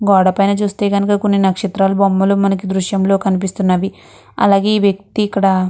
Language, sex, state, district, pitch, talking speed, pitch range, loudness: Telugu, female, Andhra Pradesh, Krishna, 195 Hz, 145 wpm, 190-200 Hz, -15 LUFS